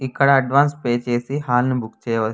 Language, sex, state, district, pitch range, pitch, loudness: Telugu, male, Andhra Pradesh, Anantapur, 120-140 Hz, 125 Hz, -19 LUFS